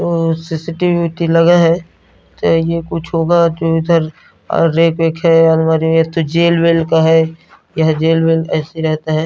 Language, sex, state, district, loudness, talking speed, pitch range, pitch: Hindi, male, Chhattisgarh, Narayanpur, -13 LUFS, 175 wpm, 160-170 Hz, 165 Hz